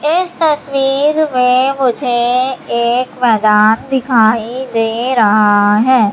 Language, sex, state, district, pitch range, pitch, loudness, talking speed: Hindi, female, Madhya Pradesh, Katni, 225-270 Hz, 250 Hz, -12 LUFS, 100 wpm